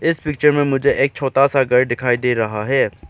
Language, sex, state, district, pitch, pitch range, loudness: Hindi, male, Arunachal Pradesh, Lower Dibang Valley, 135 Hz, 125-140 Hz, -17 LUFS